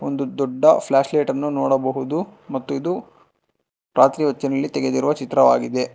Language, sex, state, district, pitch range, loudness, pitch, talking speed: Kannada, male, Karnataka, Bangalore, 135-145 Hz, -20 LUFS, 135 Hz, 100 wpm